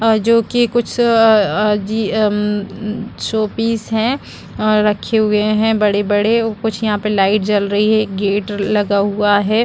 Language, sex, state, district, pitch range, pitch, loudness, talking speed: Hindi, female, Chhattisgarh, Bastar, 205-225 Hz, 215 Hz, -15 LUFS, 180 wpm